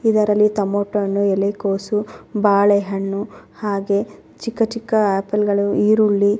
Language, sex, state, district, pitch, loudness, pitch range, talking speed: Kannada, female, Karnataka, Bellary, 205 Hz, -18 LUFS, 200-215 Hz, 110 wpm